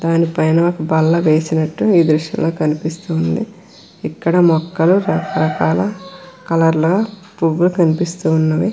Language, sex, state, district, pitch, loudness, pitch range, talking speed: Telugu, female, Andhra Pradesh, Krishna, 165 Hz, -16 LUFS, 160-175 Hz, 115 wpm